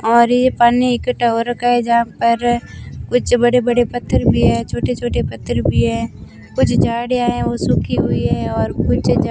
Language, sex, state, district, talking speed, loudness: Hindi, female, Rajasthan, Bikaner, 185 wpm, -16 LUFS